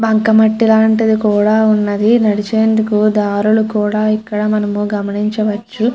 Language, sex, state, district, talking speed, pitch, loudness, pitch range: Telugu, female, Andhra Pradesh, Chittoor, 110 wpm, 215 Hz, -13 LUFS, 210-220 Hz